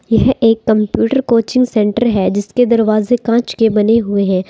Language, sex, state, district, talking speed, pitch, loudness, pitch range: Hindi, female, Uttar Pradesh, Saharanpur, 175 wpm, 225 Hz, -13 LUFS, 210-240 Hz